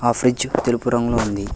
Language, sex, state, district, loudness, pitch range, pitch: Telugu, male, Telangana, Hyderabad, -20 LUFS, 115-120 Hz, 120 Hz